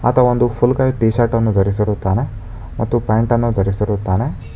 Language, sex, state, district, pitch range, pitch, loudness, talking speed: Kannada, male, Karnataka, Bangalore, 105-120 Hz, 115 Hz, -17 LUFS, 170 wpm